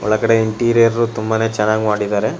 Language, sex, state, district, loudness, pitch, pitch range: Kannada, male, Karnataka, Shimoga, -16 LUFS, 110 Hz, 110-115 Hz